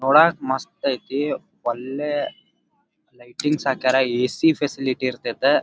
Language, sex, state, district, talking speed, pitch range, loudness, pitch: Kannada, male, Karnataka, Dharwad, 105 wpm, 130-145 Hz, -22 LUFS, 135 Hz